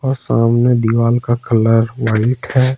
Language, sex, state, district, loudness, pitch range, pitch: Hindi, male, Jharkhand, Ranchi, -14 LUFS, 115-125 Hz, 120 Hz